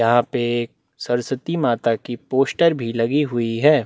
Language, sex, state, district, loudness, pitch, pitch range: Hindi, male, Chhattisgarh, Bastar, -20 LUFS, 120 Hz, 115-140 Hz